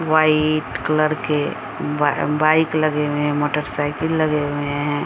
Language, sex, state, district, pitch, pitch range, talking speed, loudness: Hindi, female, Bihar, Samastipur, 150 Hz, 145-155 Hz, 155 wpm, -19 LUFS